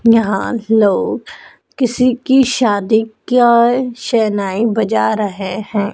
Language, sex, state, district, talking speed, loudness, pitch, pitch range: Hindi, male, Madhya Pradesh, Dhar, 100 wpm, -14 LUFS, 225 Hz, 205-245 Hz